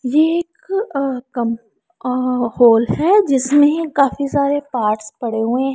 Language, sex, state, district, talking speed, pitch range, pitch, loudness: Hindi, female, Punjab, Pathankot, 135 wpm, 240-290 Hz, 270 Hz, -17 LUFS